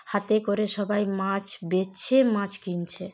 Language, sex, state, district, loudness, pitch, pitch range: Bengali, female, West Bengal, Jalpaiguri, -25 LUFS, 200 Hz, 190-205 Hz